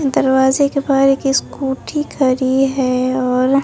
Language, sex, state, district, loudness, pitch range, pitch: Hindi, female, Bihar, Katihar, -16 LUFS, 260-275 Hz, 270 Hz